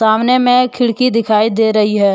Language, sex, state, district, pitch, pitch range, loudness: Hindi, male, Jharkhand, Deoghar, 225 Hz, 215-245 Hz, -13 LUFS